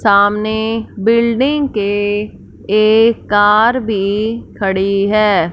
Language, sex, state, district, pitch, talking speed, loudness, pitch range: Hindi, female, Punjab, Fazilka, 215 Hz, 85 wpm, -14 LUFS, 205-225 Hz